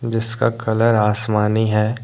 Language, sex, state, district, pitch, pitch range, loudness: Hindi, male, Jharkhand, Deoghar, 110 Hz, 105-115 Hz, -18 LUFS